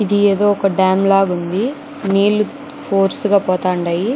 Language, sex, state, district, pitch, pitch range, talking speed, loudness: Telugu, female, Andhra Pradesh, Chittoor, 200 Hz, 190-210 Hz, 145 wpm, -16 LUFS